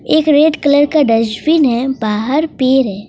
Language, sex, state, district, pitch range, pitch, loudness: Hindi, female, West Bengal, Alipurduar, 225-305 Hz, 275 Hz, -13 LUFS